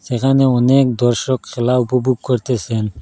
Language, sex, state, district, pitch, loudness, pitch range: Bengali, male, Assam, Hailakandi, 125 Hz, -16 LUFS, 120-130 Hz